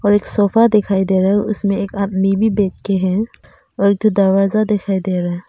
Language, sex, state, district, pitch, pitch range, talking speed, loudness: Hindi, female, Arunachal Pradesh, Papum Pare, 200 Hz, 195-210 Hz, 230 wpm, -16 LUFS